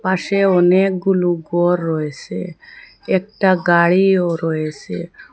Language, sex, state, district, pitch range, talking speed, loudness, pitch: Bengali, female, Assam, Hailakandi, 170-190 Hz, 80 wpm, -17 LUFS, 180 Hz